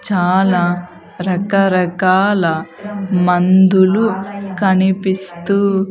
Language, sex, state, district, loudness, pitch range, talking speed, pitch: Telugu, female, Andhra Pradesh, Sri Satya Sai, -15 LUFS, 180-195 Hz, 40 wpm, 190 Hz